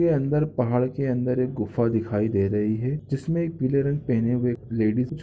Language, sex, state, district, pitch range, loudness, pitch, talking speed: Hindi, male, Chhattisgarh, Raigarh, 115-140 Hz, -24 LUFS, 125 Hz, 230 wpm